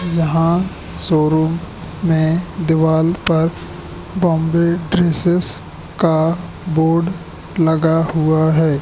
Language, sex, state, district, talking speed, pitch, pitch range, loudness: Hindi, male, Madhya Pradesh, Katni, 80 wpm, 165 Hz, 160-175 Hz, -16 LUFS